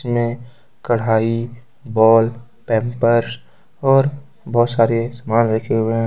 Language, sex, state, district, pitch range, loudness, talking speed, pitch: Hindi, male, Jharkhand, Deoghar, 115-120 Hz, -17 LUFS, 110 wpm, 115 Hz